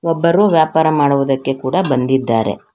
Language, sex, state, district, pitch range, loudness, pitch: Kannada, female, Karnataka, Bangalore, 130-165 Hz, -15 LUFS, 140 Hz